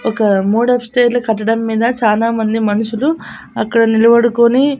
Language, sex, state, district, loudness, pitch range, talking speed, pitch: Telugu, female, Andhra Pradesh, Annamaya, -13 LUFS, 220-240 Hz, 125 wpm, 230 Hz